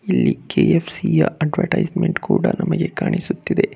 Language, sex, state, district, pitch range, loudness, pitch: Kannada, male, Karnataka, Bangalore, 175-190 Hz, -19 LUFS, 180 Hz